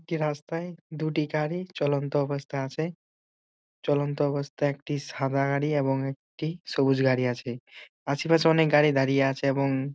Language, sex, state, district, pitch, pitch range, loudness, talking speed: Bengali, male, West Bengal, Dakshin Dinajpur, 145 Hz, 135-155 Hz, -27 LUFS, 145 wpm